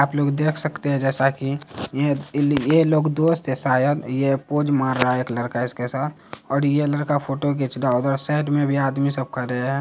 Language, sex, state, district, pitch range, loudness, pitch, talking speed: Hindi, male, Bihar, Araria, 135-145 Hz, -21 LUFS, 140 Hz, 215 wpm